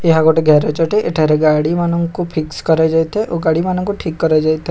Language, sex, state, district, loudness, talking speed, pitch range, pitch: Odia, male, Odisha, Khordha, -15 LUFS, 155 wpm, 155-170 Hz, 160 Hz